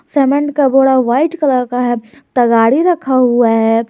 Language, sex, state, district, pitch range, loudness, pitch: Hindi, male, Jharkhand, Garhwa, 240-280 Hz, -12 LUFS, 255 Hz